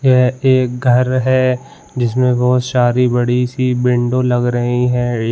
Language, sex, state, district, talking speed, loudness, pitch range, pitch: Hindi, male, Uttarakhand, Uttarkashi, 145 wpm, -15 LUFS, 125-130 Hz, 125 Hz